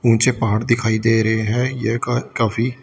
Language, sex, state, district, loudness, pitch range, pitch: Hindi, male, Uttar Pradesh, Shamli, -18 LUFS, 110-120 Hz, 115 Hz